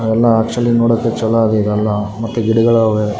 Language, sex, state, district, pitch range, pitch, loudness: Kannada, male, Karnataka, Raichur, 110-115 Hz, 115 Hz, -14 LUFS